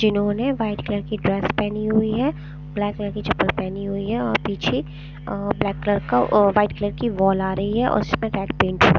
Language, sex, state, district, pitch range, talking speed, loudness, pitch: Hindi, female, Punjab, Pathankot, 195-210 Hz, 215 wpm, -22 LUFS, 205 Hz